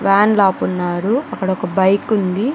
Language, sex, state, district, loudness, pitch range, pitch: Telugu, female, Andhra Pradesh, Chittoor, -16 LUFS, 185-215 Hz, 195 Hz